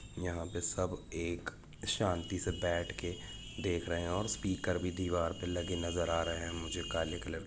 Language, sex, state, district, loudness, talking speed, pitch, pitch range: Hindi, male, Jharkhand, Jamtara, -37 LUFS, 175 wpm, 90 Hz, 85-95 Hz